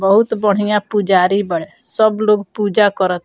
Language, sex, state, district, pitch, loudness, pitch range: Bhojpuri, female, Bihar, Muzaffarpur, 205 Hz, -15 LUFS, 190-215 Hz